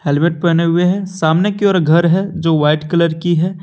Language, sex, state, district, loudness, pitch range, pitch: Hindi, male, Jharkhand, Deoghar, -14 LUFS, 165-185 Hz, 170 Hz